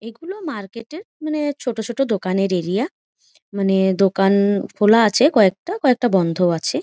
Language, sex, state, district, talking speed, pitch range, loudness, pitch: Bengali, female, West Bengal, Jhargram, 140 wpm, 195-260 Hz, -18 LUFS, 210 Hz